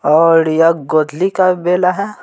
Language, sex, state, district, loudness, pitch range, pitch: Hindi, male, Bihar, Patna, -13 LUFS, 160-185 Hz, 165 Hz